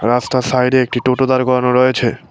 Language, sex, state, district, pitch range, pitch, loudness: Bengali, male, West Bengal, Cooch Behar, 125-130 Hz, 125 Hz, -14 LUFS